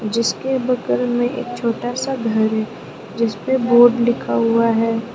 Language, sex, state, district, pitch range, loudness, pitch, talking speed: Hindi, female, Arunachal Pradesh, Lower Dibang Valley, 225-245 Hz, -18 LUFS, 235 Hz, 150 wpm